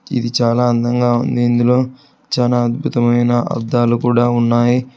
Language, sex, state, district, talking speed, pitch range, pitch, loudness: Telugu, male, Telangana, Hyderabad, 120 wpm, 120-125 Hz, 120 Hz, -15 LUFS